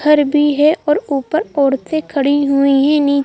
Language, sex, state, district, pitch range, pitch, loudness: Hindi, female, Madhya Pradesh, Bhopal, 275-300 Hz, 290 Hz, -14 LUFS